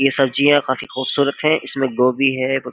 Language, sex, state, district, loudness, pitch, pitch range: Hindi, male, Uttar Pradesh, Jyotiba Phule Nagar, -17 LUFS, 135 Hz, 130-140 Hz